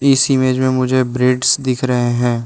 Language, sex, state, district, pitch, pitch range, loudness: Hindi, male, Arunachal Pradesh, Lower Dibang Valley, 130 Hz, 125-130 Hz, -15 LUFS